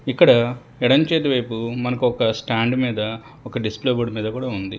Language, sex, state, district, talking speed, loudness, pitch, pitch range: Telugu, male, Telangana, Hyderabad, 150 wpm, -20 LUFS, 120 Hz, 110-125 Hz